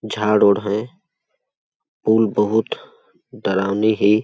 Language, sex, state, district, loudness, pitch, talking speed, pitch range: Awadhi, male, Chhattisgarh, Balrampur, -18 LUFS, 105 Hz, 100 wpm, 105-110 Hz